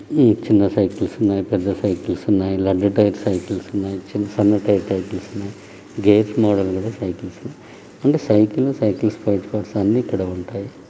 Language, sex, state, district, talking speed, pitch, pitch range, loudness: Telugu, male, Andhra Pradesh, Krishna, 40 wpm, 100 Hz, 95-105 Hz, -19 LUFS